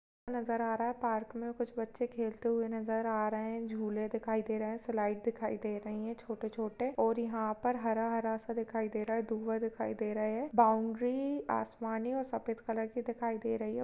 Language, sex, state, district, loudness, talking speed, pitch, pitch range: Hindi, female, Bihar, Saharsa, -35 LUFS, 220 wpm, 225 Hz, 220-235 Hz